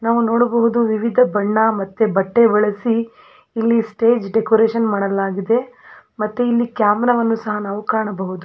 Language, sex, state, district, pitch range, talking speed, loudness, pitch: Kannada, female, Karnataka, Belgaum, 210-235 Hz, 130 wpm, -17 LUFS, 225 Hz